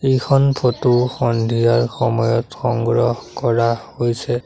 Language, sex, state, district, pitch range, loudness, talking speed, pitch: Assamese, male, Assam, Sonitpur, 115-125 Hz, -18 LUFS, 95 wpm, 120 Hz